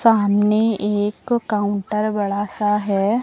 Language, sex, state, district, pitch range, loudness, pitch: Hindi, female, Uttar Pradesh, Lucknow, 205-215 Hz, -20 LUFS, 210 Hz